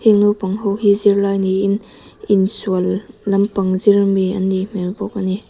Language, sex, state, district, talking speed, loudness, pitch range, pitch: Mizo, female, Mizoram, Aizawl, 175 wpm, -17 LUFS, 190-205 Hz, 200 Hz